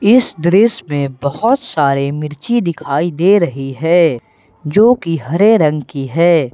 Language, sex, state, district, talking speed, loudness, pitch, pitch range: Hindi, male, Jharkhand, Ranchi, 145 wpm, -14 LUFS, 165 Hz, 140-205 Hz